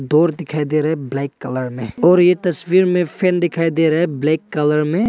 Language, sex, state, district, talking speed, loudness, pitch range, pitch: Hindi, male, Arunachal Pradesh, Papum Pare, 235 wpm, -17 LUFS, 150-175 Hz, 160 Hz